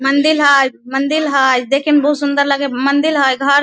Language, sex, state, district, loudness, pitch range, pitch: Maithili, female, Bihar, Samastipur, -13 LUFS, 270-290 Hz, 280 Hz